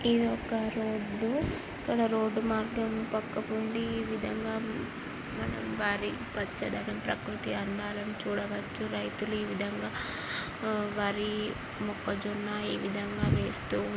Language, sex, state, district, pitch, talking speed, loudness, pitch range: Telugu, male, Andhra Pradesh, Guntur, 215 Hz, 100 wpm, -33 LUFS, 205-225 Hz